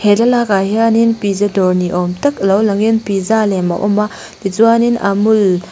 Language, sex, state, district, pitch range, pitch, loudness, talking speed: Mizo, female, Mizoram, Aizawl, 195-225 Hz, 205 Hz, -13 LUFS, 200 wpm